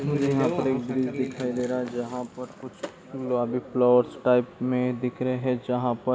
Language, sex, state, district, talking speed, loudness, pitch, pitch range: Hindi, male, Bihar, East Champaran, 205 wpm, -26 LUFS, 125 Hz, 125-130 Hz